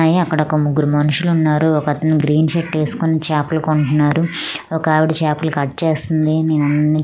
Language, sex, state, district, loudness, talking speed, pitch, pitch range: Telugu, female, Andhra Pradesh, Manyam, -16 LUFS, 130 wpm, 155 Hz, 150-160 Hz